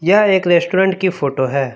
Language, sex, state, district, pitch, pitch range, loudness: Hindi, male, Jharkhand, Palamu, 175 Hz, 140-190 Hz, -15 LUFS